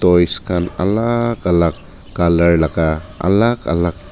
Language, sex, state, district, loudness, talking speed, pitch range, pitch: Nagamese, male, Nagaland, Dimapur, -16 LUFS, 115 wpm, 85-100 Hz, 85 Hz